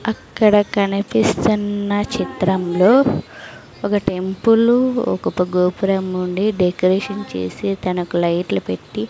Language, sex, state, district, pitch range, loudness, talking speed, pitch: Telugu, female, Andhra Pradesh, Sri Satya Sai, 180-205 Hz, -18 LUFS, 90 wpm, 195 Hz